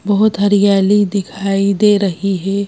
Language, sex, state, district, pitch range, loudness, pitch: Hindi, female, Madhya Pradesh, Bhopal, 195-205 Hz, -14 LUFS, 200 Hz